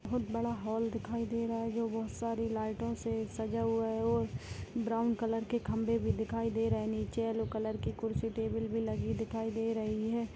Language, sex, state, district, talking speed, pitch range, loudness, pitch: Hindi, female, Chhattisgarh, Jashpur, 215 wpm, 220-230 Hz, -35 LUFS, 225 Hz